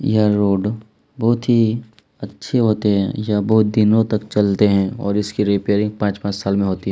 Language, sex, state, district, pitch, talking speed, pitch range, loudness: Hindi, male, Chhattisgarh, Kabirdham, 105 Hz, 200 wpm, 100-110 Hz, -18 LUFS